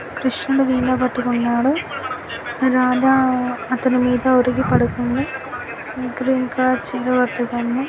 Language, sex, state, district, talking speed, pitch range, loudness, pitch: Telugu, female, Andhra Pradesh, Guntur, 75 wpm, 245-260 Hz, -19 LUFS, 255 Hz